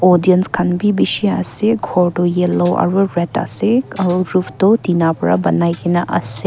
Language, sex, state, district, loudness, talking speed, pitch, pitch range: Nagamese, female, Nagaland, Kohima, -15 LUFS, 175 wpm, 180 Hz, 175-195 Hz